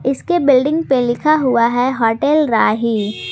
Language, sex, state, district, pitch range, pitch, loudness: Hindi, female, Jharkhand, Ranchi, 235-295 Hz, 255 Hz, -15 LUFS